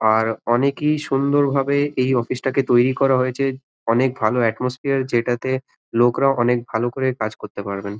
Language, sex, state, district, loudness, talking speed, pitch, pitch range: Bengali, male, West Bengal, Malda, -20 LUFS, 160 wpm, 130 Hz, 120-135 Hz